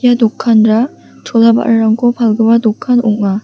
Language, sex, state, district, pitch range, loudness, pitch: Garo, female, Meghalaya, West Garo Hills, 220-240 Hz, -11 LUFS, 230 Hz